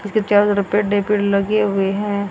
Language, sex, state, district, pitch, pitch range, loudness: Hindi, female, Haryana, Rohtak, 205 Hz, 200-210 Hz, -17 LUFS